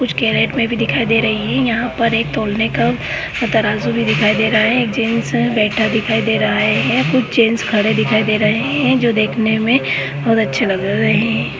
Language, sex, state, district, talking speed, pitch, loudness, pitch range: Hindi, female, Goa, North and South Goa, 210 wpm, 220 Hz, -15 LUFS, 215-230 Hz